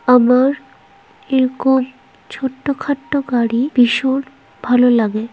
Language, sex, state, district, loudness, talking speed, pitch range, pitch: Bengali, female, West Bengal, Kolkata, -16 LUFS, 90 wpm, 245-270 Hz, 260 Hz